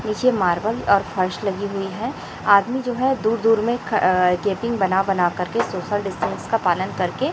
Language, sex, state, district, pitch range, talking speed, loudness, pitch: Hindi, female, Chhattisgarh, Raipur, 185-225 Hz, 195 wpm, -21 LUFS, 200 Hz